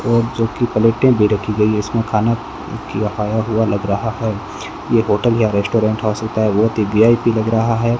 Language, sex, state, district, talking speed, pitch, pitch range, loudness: Hindi, male, Rajasthan, Bikaner, 210 wpm, 110 Hz, 105-115 Hz, -16 LUFS